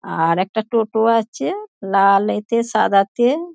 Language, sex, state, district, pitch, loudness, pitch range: Bengali, female, West Bengal, Dakshin Dinajpur, 220 Hz, -18 LUFS, 195-240 Hz